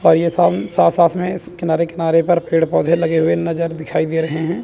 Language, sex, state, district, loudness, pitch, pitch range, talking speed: Hindi, male, Chandigarh, Chandigarh, -17 LUFS, 165 Hz, 165-170 Hz, 230 wpm